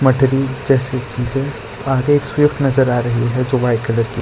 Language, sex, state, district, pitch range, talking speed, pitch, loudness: Hindi, male, Gujarat, Valsad, 120-135 Hz, 200 wpm, 130 Hz, -17 LUFS